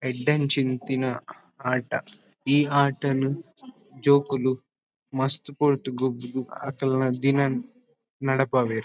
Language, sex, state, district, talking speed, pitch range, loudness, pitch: Tulu, male, Karnataka, Dakshina Kannada, 75 wpm, 130-145 Hz, -24 LUFS, 135 Hz